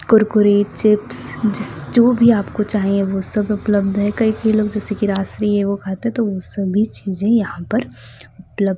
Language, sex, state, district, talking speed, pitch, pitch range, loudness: Hindi, female, Delhi, New Delhi, 185 wpm, 210 Hz, 200-220 Hz, -17 LUFS